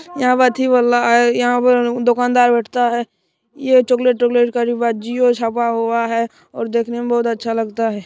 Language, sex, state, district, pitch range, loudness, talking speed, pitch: Maithili, male, Bihar, Supaul, 235-245 Hz, -16 LUFS, 200 wpm, 240 Hz